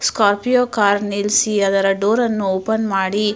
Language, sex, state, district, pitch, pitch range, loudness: Kannada, female, Karnataka, Mysore, 205 Hz, 200-220 Hz, -17 LUFS